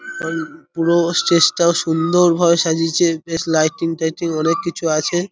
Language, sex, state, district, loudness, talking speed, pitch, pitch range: Bengali, male, West Bengal, North 24 Parganas, -17 LUFS, 135 wpm, 170 Hz, 160-170 Hz